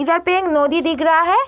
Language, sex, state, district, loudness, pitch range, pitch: Hindi, female, Bihar, East Champaran, -16 LUFS, 320-340 Hz, 330 Hz